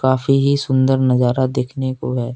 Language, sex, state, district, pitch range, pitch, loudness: Hindi, male, Jharkhand, Deoghar, 125-135 Hz, 130 Hz, -17 LUFS